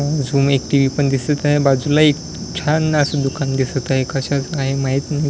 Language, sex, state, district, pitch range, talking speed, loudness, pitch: Marathi, male, Maharashtra, Washim, 135-150 Hz, 180 wpm, -17 LUFS, 140 Hz